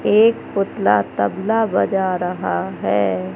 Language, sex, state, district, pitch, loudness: Hindi, male, Madhya Pradesh, Katni, 180 Hz, -19 LUFS